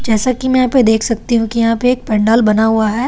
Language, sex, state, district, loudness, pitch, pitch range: Hindi, female, Delhi, New Delhi, -13 LUFS, 230 Hz, 220-250 Hz